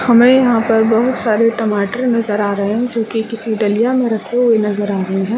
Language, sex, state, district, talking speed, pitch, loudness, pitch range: Hindi, female, Chhattisgarh, Raigarh, 245 wpm, 225 Hz, -15 LUFS, 210-235 Hz